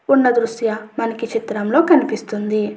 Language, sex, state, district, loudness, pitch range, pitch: Telugu, female, Andhra Pradesh, Chittoor, -18 LUFS, 215-250 Hz, 230 Hz